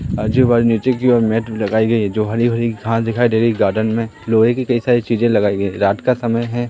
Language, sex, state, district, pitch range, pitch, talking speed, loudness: Hindi, male, Madhya Pradesh, Katni, 110-120 Hz, 115 Hz, 270 wpm, -16 LUFS